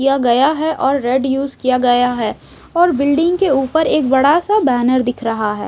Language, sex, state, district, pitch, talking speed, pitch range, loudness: Hindi, female, Odisha, Sambalpur, 270 Hz, 210 wpm, 245-300 Hz, -15 LUFS